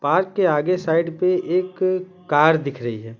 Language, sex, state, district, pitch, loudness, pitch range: Hindi, male, Bihar, Patna, 180 Hz, -20 LUFS, 150-185 Hz